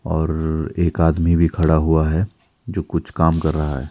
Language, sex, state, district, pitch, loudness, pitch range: Hindi, male, Himachal Pradesh, Shimla, 80 Hz, -19 LUFS, 80-85 Hz